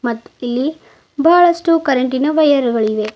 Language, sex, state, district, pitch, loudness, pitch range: Kannada, female, Karnataka, Bidar, 275 Hz, -15 LUFS, 240-315 Hz